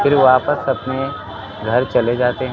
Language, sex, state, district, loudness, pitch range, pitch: Hindi, male, Bihar, Kaimur, -17 LUFS, 120-135 Hz, 130 Hz